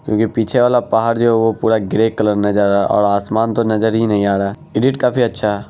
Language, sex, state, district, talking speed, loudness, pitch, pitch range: Hindi, male, Bihar, Araria, 265 wpm, -15 LUFS, 110 Hz, 105-115 Hz